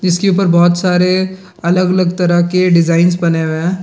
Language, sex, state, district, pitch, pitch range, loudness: Hindi, male, Bihar, Gaya, 180 Hz, 175-185 Hz, -12 LUFS